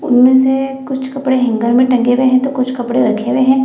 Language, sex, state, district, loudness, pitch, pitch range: Hindi, female, Bihar, Gaya, -13 LUFS, 260 Hz, 245-265 Hz